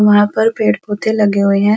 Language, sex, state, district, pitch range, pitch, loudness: Hindi, female, Uttar Pradesh, Muzaffarnagar, 200-220 Hz, 210 Hz, -14 LUFS